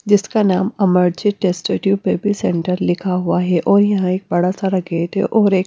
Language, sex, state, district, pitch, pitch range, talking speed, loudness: Hindi, female, Punjab, Kapurthala, 190 Hz, 180-205 Hz, 190 wpm, -17 LUFS